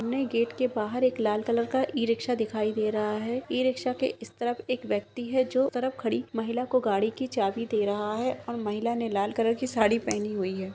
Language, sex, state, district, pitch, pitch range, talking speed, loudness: Hindi, female, Bihar, Kishanganj, 235 Hz, 215-255 Hz, 235 wpm, -28 LUFS